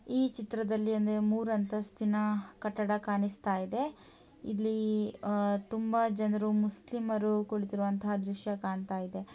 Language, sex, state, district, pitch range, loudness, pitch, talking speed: Kannada, female, Karnataka, Mysore, 205-220 Hz, -33 LUFS, 210 Hz, 105 wpm